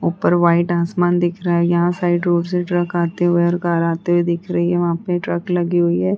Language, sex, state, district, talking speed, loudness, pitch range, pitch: Hindi, female, Uttar Pradesh, Hamirpur, 250 wpm, -18 LUFS, 170-175 Hz, 175 Hz